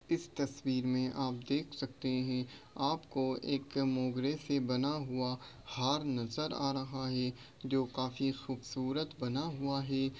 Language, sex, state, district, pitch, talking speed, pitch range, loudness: Hindi, male, Maharashtra, Nagpur, 135 Hz, 140 wpm, 130-140 Hz, -36 LUFS